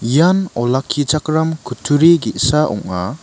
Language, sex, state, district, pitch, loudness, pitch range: Garo, male, Meghalaya, West Garo Hills, 150 Hz, -15 LUFS, 125-160 Hz